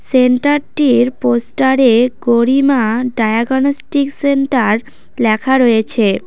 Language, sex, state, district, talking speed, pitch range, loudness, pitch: Bengali, female, West Bengal, Cooch Behar, 85 wpm, 235-275 Hz, -13 LUFS, 250 Hz